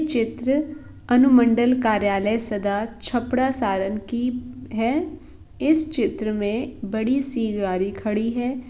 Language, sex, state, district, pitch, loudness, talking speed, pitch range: Hindi, female, Bihar, Saran, 235 Hz, -22 LUFS, 115 wpm, 215-255 Hz